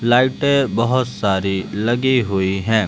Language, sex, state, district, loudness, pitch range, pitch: Hindi, male, Madhya Pradesh, Umaria, -18 LUFS, 95-130 Hz, 115 Hz